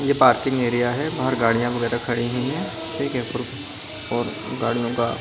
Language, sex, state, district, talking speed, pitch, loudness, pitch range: Hindi, male, Delhi, New Delhi, 195 wpm, 120 Hz, -22 LUFS, 120-130 Hz